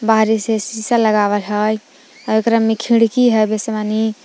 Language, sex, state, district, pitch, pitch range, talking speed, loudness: Magahi, female, Jharkhand, Palamu, 220 Hz, 215-225 Hz, 170 wpm, -16 LUFS